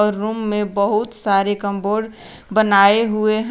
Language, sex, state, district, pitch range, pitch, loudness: Hindi, female, Jharkhand, Garhwa, 200-220 Hz, 210 Hz, -18 LUFS